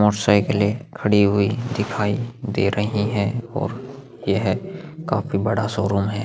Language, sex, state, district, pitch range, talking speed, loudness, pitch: Hindi, male, Chhattisgarh, Sukma, 100-120 Hz, 115 wpm, -21 LUFS, 105 Hz